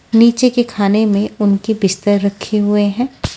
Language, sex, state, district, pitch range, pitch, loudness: Hindi, female, Punjab, Fazilka, 200-230 Hz, 210 Hz, -14 LUFS